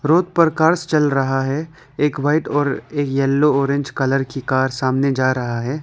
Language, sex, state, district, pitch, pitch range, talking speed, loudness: Hindi, male, Arunachal Pradesh, Lower Dibang Valley, 140 Hz, 135-150 Hz, 185 wpm, -18 LUFS